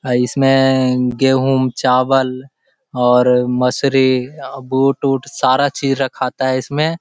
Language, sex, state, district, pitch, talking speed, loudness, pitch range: Hindi, male, Bihar, Jahanabad, 130 Hz, 110 wpm, -15 LUFS, 125-135 Hz